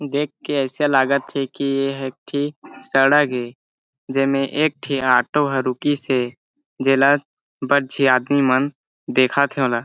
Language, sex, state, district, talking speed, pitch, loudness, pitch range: Chhattisgarhi, male, Chhattisgarh, Jashpur, 160 wpm, 135 Hz, -19 LUFS, 130-145 Hz